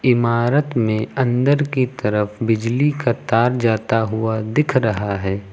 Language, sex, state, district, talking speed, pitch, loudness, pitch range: Hindi, male, Uttar Pradesh, Lucknow, 140 wpm, 115 Hz, -19 LUFS, 110-130 Hz